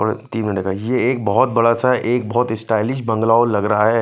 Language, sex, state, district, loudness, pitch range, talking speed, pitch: Hindi, male, Punjab, Fazilka, -18 LUFS, 110-120 Hz, 225 wpm, 115 Hz